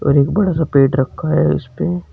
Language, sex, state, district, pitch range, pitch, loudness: Hindi, male, Uttar Pradesh, Shamli, 140-175 Hz, 155 Hz, -16 LUFS